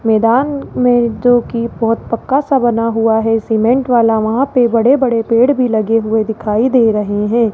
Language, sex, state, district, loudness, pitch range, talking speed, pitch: Hindi, male, Rajasthan, Jaipur, -13 LUFS, 225-245 Hz, 175 wpm, 230 Hz